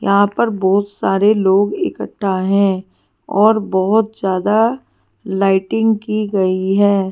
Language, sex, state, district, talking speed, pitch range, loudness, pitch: Hindi, female, Delhi, New Delhi, 120 wpm, 190-215 Hz, -16 LUFS, 200 Hz